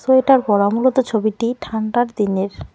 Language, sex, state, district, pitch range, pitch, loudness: Bengali, female, West Bengal, Cooch Behar, 210-255 Hz, 225 Hz, -17 LUFS